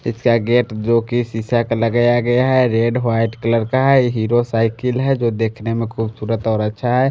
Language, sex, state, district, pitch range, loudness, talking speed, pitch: Hindi, male, Chandigarh, Chandigarh, 115-120 Hz, -17 LUFS, 200 wpm, 115 Hz